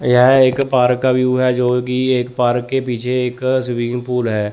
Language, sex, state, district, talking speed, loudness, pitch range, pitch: Hindi, male, Chandigarh, Chandigarh, 200 wpm, -16 LUFS, 125-130 Hz, 125 Hz